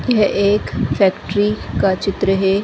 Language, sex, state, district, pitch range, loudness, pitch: Hindi, female, Uttar Pradesh, Deoria, 195-205 Hz, -17 LUFS, 195 Hz